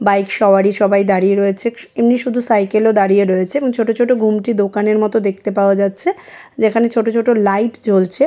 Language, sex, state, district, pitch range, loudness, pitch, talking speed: Bengali, female, West Bengal, Jalpaiguri, 200-235 Hz, -15 LUFS, 215 Hz, 165 wpm